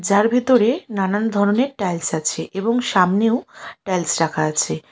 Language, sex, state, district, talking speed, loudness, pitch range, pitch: Bengali, female, West Bengal, Alipurduar, 135 wpm, -19 LUFS, 165-225 Hz, 195 Hz